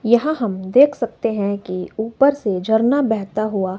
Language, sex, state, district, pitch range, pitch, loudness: Hindi, female, Himachal Pradesh, Shimla, 200-245 Hz, 220 Hz, -18 LUFS